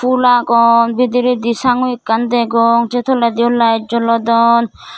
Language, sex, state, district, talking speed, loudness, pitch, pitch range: Chakma, female, Tripura, Dhalai, 130 wpm, -13 LUFS, 235 Hz, 230-245 Hz